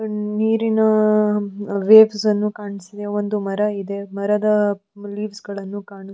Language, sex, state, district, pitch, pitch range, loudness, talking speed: Kannada, female, Karnataka, Dharwad, 205 Hz, 200-215 Hz, -19 LUFS, 105 wpm